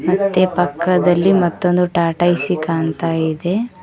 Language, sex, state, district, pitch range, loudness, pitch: Kannada, male, Karnataka, Koppal, 165-185 Hz, -16 LUFS, 175 Hz